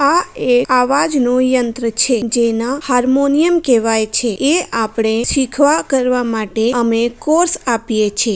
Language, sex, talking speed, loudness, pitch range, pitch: Gujarati, female, 130 wpm, -15 LUFS, 230-280 Hz, 245 Hz